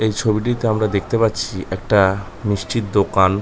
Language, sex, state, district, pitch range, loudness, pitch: Bengali, male, West Bengal, North 24 Parganas, 95-110 Hz, -19 LUFS, 105 Hz